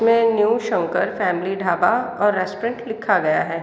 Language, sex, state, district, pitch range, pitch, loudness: Hindi, female, Bihar, East Champaran, 185-230 Hz, 210 Hz, -20 LUFS